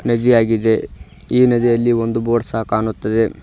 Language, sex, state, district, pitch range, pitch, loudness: Kannada, male, Karnataka, Koppal, 110-120 Hz, 115 Hz, -16 LUFS